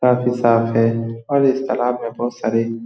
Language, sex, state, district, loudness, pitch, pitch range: Hindi, male, Bihar, Saran, -18 LUFS, 120 Hz, 115-125 Hz